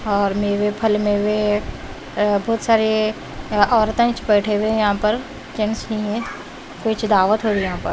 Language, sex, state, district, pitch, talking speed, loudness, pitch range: Hindi, female, Bihar, West Champaran, 215 Hz, 190 wpm, -19 LUFS, 205-220 Hz